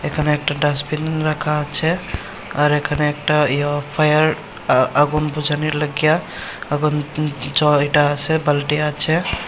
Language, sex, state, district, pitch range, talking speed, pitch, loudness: Bengali, male, Tripura, Unakoti, 145-155 Hz, 125 wpm, 150 Hz, -18 LUFS